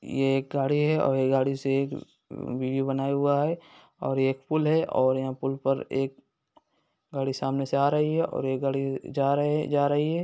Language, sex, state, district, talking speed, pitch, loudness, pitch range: Hindi, male, Bihar, East Champaran, 225 wpm, 135 Hz, -26 LUFS, 135-145 Hz